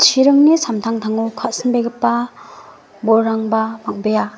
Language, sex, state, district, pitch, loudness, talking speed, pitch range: Garo, female, Meghalaya, West Garo Hills, 225 Hz, -16 LUFS, 70 wpm, 220-245 Hz